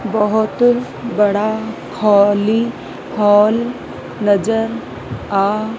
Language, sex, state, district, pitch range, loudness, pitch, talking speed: Hindi, female, Madhya Pradesh, Dhar, 205-225 Hz, -16 LUFS, 215 Hz, 60 wpm